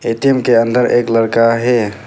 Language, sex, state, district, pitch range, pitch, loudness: Hindi, male, Arunachal Pradesh, Papum Pare, 115-120 Hz, 115 Hz, -13 LUFS